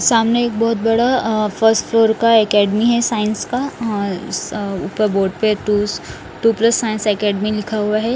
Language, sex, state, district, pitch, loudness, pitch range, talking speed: Hindi, male, Odisha, Nuapada, 220 Hz, -17 LUFS, 210-230 Hz, 185 wpm